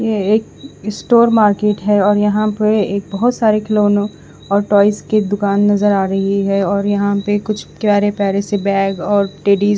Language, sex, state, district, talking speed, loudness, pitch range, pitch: Hindi, female, Odisha, Khordha, 190 wpm, -15 LUFS, 200-210 Hz, 205 Hz